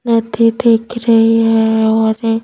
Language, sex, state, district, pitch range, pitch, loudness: Hindi, female, Madhya Pradesh, Bhopal, 220-230 Hz, 225 Hz, -12 LUFS